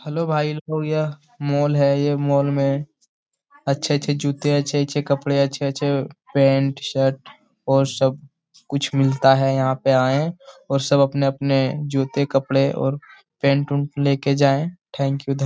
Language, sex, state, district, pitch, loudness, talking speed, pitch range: Hindi, male, Bihar, Jamui, 140 Hz, -20 LUFS, 145 wpm, 135-145 Hz